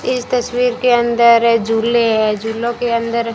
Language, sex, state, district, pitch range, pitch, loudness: Hindi, female, Rajasthan, Bikaner, 230-240 Hz, 235 Hz, -15 LUFS